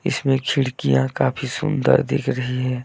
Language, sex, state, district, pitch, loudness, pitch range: Hindi, male, Jharkhand, Deoghar, 130 Hz, -20 LUFS, 125-135 Hz